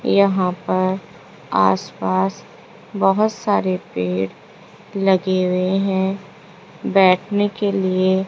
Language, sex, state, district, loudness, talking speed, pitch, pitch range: Hindi, female, Rajasthan, Jaipur, -19 LUFS, 95 wpm, 190 Hz, 180-195 Hz